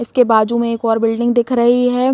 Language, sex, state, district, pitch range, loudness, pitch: Hindi, female, Uttar Pradesh, Gorakhpur, 230-245 Hz, -15 LUFS, 235 Hz